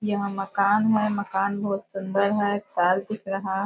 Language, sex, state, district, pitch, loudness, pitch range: Hindi, female, Bihar, Purnia, 200 Hz, -24 LUFS, 195-205 Hz